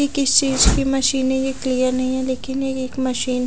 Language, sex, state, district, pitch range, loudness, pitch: Hindi, female, Odisha, Khordha, 255-270 Hz, -19 LUFS, 260 Hz